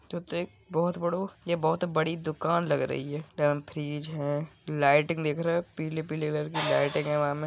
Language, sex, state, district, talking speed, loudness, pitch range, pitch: Bundeli, male, Uttar Pradesh, Budaun, 235 wpm, -29 LUFS, 150-170 Hz, 155 Hz